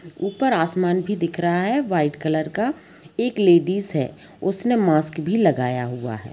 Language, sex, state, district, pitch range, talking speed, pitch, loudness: Hindi, female, Jharkhand, Sahebganj, 155-200 Hz, 170 wpm, 175 Hz, -21 LUFS